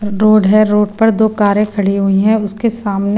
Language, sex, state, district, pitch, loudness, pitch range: Hindi, female, Himachal Pradesh, Shimla, 210 Hz, -12 LUFS, 200-215 Hz